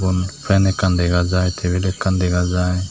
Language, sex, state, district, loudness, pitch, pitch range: Chakma, male, Tripura, Dhalai, -18 LUFS, 90 Hz, 90-95 Hz